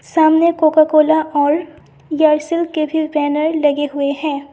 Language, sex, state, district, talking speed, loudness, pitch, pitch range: Hindi, female, Assam, Sonitpur, 145 wpm, -15 LUFS, 310 Hz, 295-315 Hz